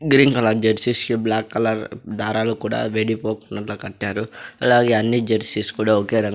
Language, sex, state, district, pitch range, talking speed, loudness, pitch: Telugu, male, Andhra Pradesh, Sri Satya Sai, 110-115 Hz, 150 wpm, -20 LUFS, 110 Hz